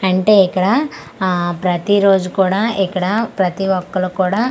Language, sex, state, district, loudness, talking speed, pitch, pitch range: Telugu, female, Andhra Pradesh, Manyam, -16 LUFS, 135 wpm, 190 Hz, 185-205 Hz